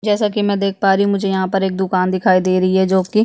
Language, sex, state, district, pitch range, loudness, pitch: Hindi, female, Chhattisgarh, Bastar, 185-200 Hz, -16 LUFS, 190 Hz